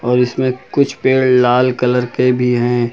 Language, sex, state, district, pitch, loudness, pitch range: Hindi, male, Uttar Pradesh, Lucknow, 125 Hz, -14 LUFS, 125-130 Hz